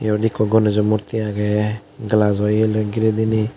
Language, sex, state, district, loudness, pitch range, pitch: Chakma, male, Tripura, West Tripura, -19 LUFS, 105-110 Hz, 110 Hz